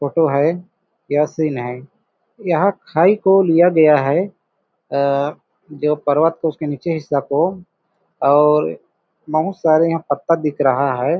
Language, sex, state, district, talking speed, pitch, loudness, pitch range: Hindi, male, Chhattisgarh, Balrampur, 140 wpm, 155 Hz, -17 LUFS, 145-170 Hz